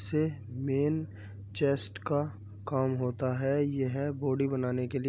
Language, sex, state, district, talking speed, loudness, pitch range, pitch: Hindi, male, Uttar Pradesh, Muzaffarnagar, 155 wpm, -31 LUFS, 125-140 Hz, 135 Hz